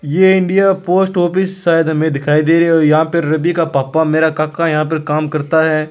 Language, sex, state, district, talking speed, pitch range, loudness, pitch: Hindi, male, Rajasthan, Churu, 225 wpm, 155-175 Hz, -14 LUFS, 160 Hz